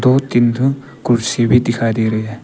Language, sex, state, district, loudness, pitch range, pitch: Hindi, male, Arunachal Pradesh, Papum Pare, -15 LUFS, 115-130 Hz, 120 Hz